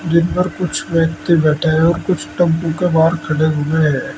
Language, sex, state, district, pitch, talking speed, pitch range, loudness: Hindi, male, Uttar Pradesh, Saharanpur, 165 Hz, 200 wpm, 155-170 Hz, -16 LUFS